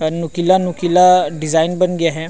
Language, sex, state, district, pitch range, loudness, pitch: Chhattisgarhi, male, Chhattisgarh, Rajnandgaon, 160-180 Hz, -15 LUFS, 170 Hz